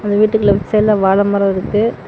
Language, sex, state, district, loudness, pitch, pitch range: Tamil, male, Tamil Nadu, Namakkal, -14 LUFS, 205 Hz, 200-215 Hz